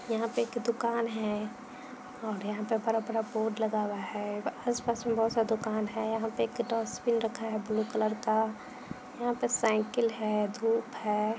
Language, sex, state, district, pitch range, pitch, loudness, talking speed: Hindi, female, Bihar, Jahanabad, 215-235 Hz, 225 Hz, -31 LUFS, 180 wpm